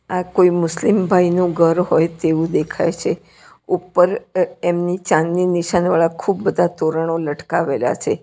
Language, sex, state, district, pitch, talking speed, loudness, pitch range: Gujarati, female, Gujarat, Valsad, 175 Hz, 130 wpm, -18 LUFS, 165-180 Hz